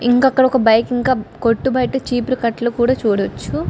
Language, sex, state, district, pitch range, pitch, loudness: Telugu, female, Andhra Pradesh, Chittoor, 235-260 Hz, 245 Hz, -17 LUFS